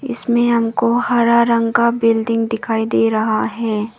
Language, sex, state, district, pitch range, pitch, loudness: Hindi, female, Arunachal Pradesh, Papum Pare, 225-235 Hz, 230 Hz, -16 LUFS